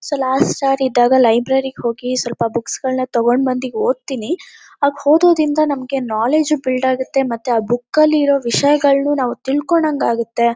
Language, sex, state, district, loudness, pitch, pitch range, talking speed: Kannada, female, Karnataka, Shimoga, -16 LUFS, 265 Hz, 240-290 Hz, 135 wpm